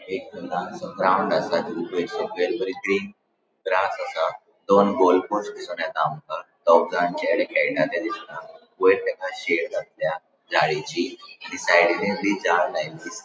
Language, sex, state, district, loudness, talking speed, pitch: Konkani, male, Goa, North and South Goa, -23 LUFS, 135 wpm, 350 Hz